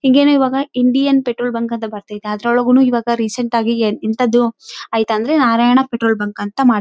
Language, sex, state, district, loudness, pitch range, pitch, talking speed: Kannada, female, Karnataka, Raichur, -15 LUFS, 225-255 Hz, 235 Hz, 160 wpm